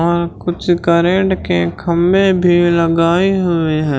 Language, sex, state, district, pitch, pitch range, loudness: Hindi, male, Chhattisgarh, Raipur, 170 Hz, 165-180 Hz, -14 LUFS